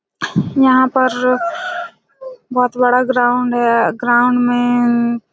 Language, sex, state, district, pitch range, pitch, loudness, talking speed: Hindi, female, Chhattisgarh, Raigarh, 245-260 Hz, 250 Hz, -15 LUFS, 90 wpm